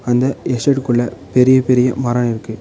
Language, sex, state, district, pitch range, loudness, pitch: Tamil, male, Tamil Nadu, Nilgiris, 120-130 Hz, -15 LUFS, 125 Hz